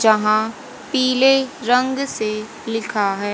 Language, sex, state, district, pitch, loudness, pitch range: Hindi, female, Haryana, Charkhi Dadri, 225 Hz, -19 LUFS, 215-260 Hz